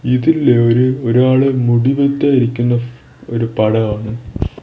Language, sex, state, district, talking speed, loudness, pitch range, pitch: Malayalam, male, Kerala, Thiruvananthapuram, 115 wpm, -14 LUFS, 115-130 Hz, 120 Hz